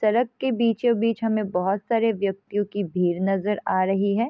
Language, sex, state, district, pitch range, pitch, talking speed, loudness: Hindi, female, Bihar, Sitamarhi, 195-230 Hz, 205 Hz, 180 wpm, -24 LUFS